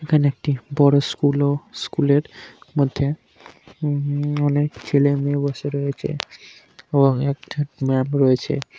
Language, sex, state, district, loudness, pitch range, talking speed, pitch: Bengali, male, West Bengal, Kolkata, -21 LUFS, 140-145 Hz, 145 wpm, 140 Hz